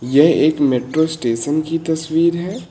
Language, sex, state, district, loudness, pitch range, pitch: Hindi, male, Uttar Pradesh, Lucknow, -17 LUFS, 135-165 Hz, 155 Hz